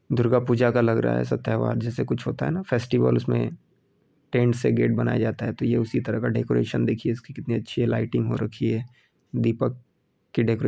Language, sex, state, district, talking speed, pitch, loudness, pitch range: Bhojpuri, male, Uttar Pradesh, Ghazipur, 220 wpm, 115 Hz, -24 LUFS, 85-125 Hz